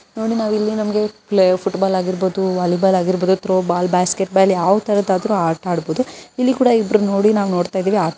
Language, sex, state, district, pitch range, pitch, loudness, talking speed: Kannada, female, Karnataka, Bijapur, 185-210 Hz, 195 Hz, -17 LUFS, 130 wpm